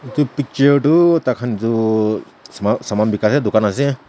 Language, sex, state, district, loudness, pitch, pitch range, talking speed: Nagamese, male, Nagaland, Kohima, -16 LUFS, 125 Hz, 110-140 Hz, 160 wpm